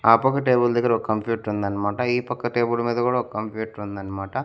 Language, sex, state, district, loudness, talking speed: Telugu, male, Andhra Pradesh, Annamaya, -23 LUFS, 200 wpm